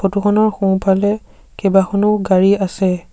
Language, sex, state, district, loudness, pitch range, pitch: Assamese, male, Assam, Sonitpur, -15 LUFS, 190-205 Hz, 195 Hz